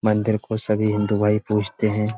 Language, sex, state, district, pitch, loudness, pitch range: Hindi, male, Uttar Pradesh, Budaun, 105 Hz, -21 LUFS, 105-110 Hz